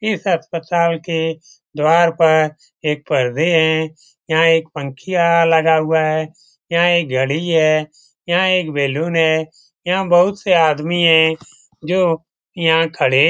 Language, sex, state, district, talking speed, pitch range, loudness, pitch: Hindi, male, Bihar, Lakhisarai, 140 wpm, 155-170 Hz, -16 LUFS, 160 Hz